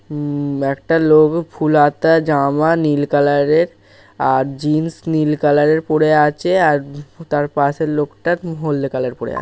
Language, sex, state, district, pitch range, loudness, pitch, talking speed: Bengali, male, West Bengal, Paschim Medinipur, 145-160 Hz, -16 LUFS, 150 Hz, 160 wpm